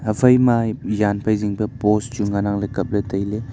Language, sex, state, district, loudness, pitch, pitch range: Wancho, male, Arunachal Pradesh, Longding, -20 LUFS, 105 Hz, 100-110 Hz